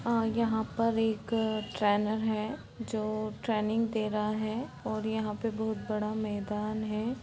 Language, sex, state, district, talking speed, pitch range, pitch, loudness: Hindi, female, Jharkhand, Jamtara, 150 wpm, 215-225 Hz, 220 Hz, -32 LUFS